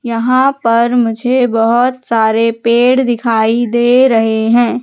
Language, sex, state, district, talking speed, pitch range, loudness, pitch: Hindi, female, Madhya Pradesh, Katni, 125 wpm, 230-245 Hz, -12 LUFS, 235 Hz